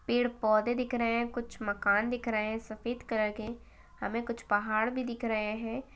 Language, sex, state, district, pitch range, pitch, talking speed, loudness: Hindi, female, Chhattisgarh, Bastar, 215-240 Hz, 230 Hz, 200 wpm, -32 LUFS